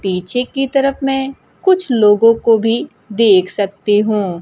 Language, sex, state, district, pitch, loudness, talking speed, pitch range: Hindi, female, Bihar, Kaimur, 225 Hz, -14 LUFS, 150 wpm, 205-270 Hz